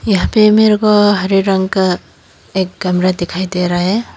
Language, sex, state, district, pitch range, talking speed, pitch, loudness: Hindi, female, Tripura, Dhalai, 185-210 Hz, 185 wpm, 190 Hz, -13 LUFS